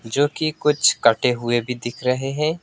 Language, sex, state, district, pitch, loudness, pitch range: Hindi, male, West Bengal, Alipurduar, 135 Hz, -20 LUFS, 120-150 Hz